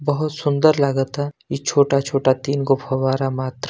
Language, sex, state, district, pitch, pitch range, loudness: Hindi, male, Bihar, Gopalganj, 140 Hz, 135-145 Hz, -20 LUFS